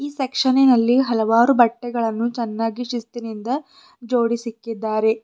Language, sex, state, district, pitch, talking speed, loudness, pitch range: Kannada, female, Karnataka, Bidar, 235 Hz, 70 wpm, -20 LUFS, 225-255 Hz